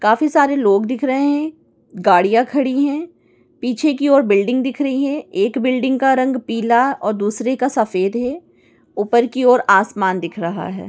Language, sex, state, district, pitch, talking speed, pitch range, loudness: Hindi, female, Chhattisgarh, Raigarh, 255 Hz, 180 wpm, 215-280 Hz, -17 LUFS